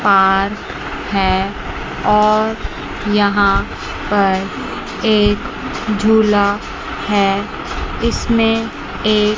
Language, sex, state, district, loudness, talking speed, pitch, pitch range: Hindi, female, Chandigarh, Chandigarh, -16 LUFS, 65 wpm, 205 Hz, 195-215 Hz